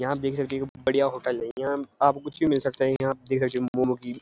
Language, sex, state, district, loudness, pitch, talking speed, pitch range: Hindi, male, Uttarakhand, Uttarkashi, -26 LUFS, 135 Hz, 300 wpm, 130-140 Hz